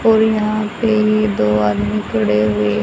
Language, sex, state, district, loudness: Hindi, female, Haryana, Charkhi Dadri, -16 LUFS